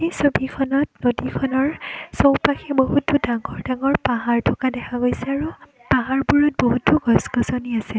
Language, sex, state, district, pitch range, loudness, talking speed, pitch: Assamese, female, Assam, Kamrup Metropolitan, 245-285 Hz, -20 LUFS, 115 wpm, 265 Hz